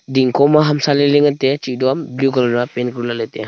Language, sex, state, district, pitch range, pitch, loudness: Wancho, male, Arunachal Pradesh, Longding, 125-145 Hz, 135 Hz, -16 LUFS